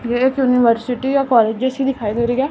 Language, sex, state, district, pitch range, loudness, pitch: Hindi, female, Chhattisgarh, Raipur, 235-265 Hz, -17 LUFS, 250 Hz